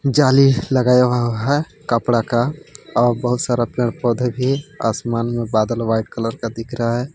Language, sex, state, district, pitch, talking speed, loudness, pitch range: Hindi, male, Jharkhand, Palamu, 120 Hz, 175 wpm, -18 LUFS, 115-130 Hz